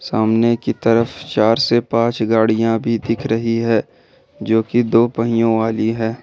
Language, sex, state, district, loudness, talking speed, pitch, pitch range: Hindi, male, Jharkhand, Ranchi, -17 LUFS, 165 wpm, 115 Hz, 110-115 Hz